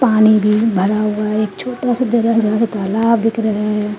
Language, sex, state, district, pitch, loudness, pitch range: Hindi, female, Uttarakhand, Tehri Garhwal, 215 Hz, -15 LUFS, 210-230 Hz